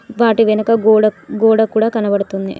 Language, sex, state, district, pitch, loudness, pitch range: Telugu, female, Telangana, Mahabubabad, 220 Hz, -14 LUFS, 215-225 Hz